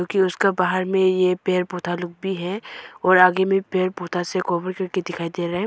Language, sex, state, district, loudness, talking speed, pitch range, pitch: Hindi, female, Arunachal Pradesh, Longding, -21 LUFS, 190 wpm, 175-190 Hz, 185 Hz